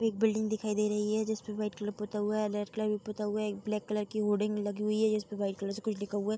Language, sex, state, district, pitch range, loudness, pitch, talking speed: Hindi, female, Bihar, Gopalganj, 210-215 Hz, -33 LUFS, 210 Hz, 330 wpm